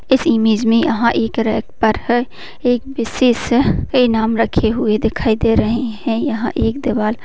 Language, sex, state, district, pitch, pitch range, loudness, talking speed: Hindi, female, Bihar, Purnia, 230 Hz, 225-245 Hz, -16 LUFS, 175 wpm